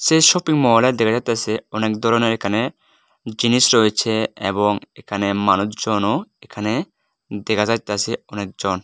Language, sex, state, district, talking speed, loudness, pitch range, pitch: Bengali, male, Tripura, West Tripura, 110 wpm, -18 LUFS, 105-115 Hz, 110 Hz